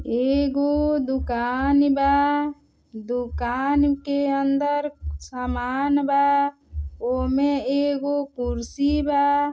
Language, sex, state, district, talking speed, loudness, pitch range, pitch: Bhojpuri, female, Uttar Pradesh, Deoria, 80 wpm, -22 LUFS, 255-285 Hz, 280 Hz